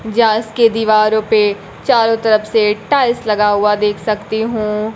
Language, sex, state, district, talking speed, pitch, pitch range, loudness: Hindi, female, Bihar, Kaimur, 145 wpm, 215 Hz, 210-225 Hz, -14 LUFS